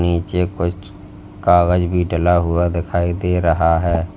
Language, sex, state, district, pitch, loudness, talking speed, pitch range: Hindi, male, Uttar Pradesh, Lalitpur, 85 Hz, -17 LUFS, 145 wpm, 85-90 Hz